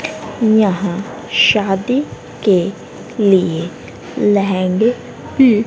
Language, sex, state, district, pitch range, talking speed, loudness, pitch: Hindi, female, Haryana, Rohtak, 190-220 Hz, 65 wpm, -15 LUFS, 200 Hz